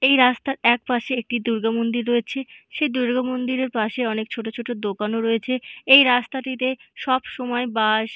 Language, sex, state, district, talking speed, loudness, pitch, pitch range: Bengali, female, West Bengal, North 24 Parganas, 175 wpm, -21 LUFS, 245 Hz, 230-255 Hz